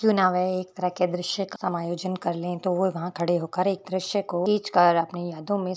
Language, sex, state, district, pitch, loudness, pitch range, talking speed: Hindi, female, Rajasthan, Churu, 180 Hz, -25 LUFS, 175-190 Hz, 220 wpm